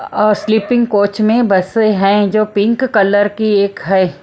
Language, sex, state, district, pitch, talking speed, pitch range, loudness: Hindi, female, Maharashtra, Mumbai Suburban, 205 Hz, 170 wpm, 200-220 Hz, -13 LUFS